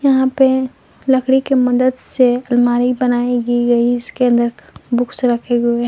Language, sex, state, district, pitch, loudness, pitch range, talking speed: Hindi, female, Jharkhand, Palamu, 245 Hz, -15 LUFS, 240-260 Hz, 165 wpm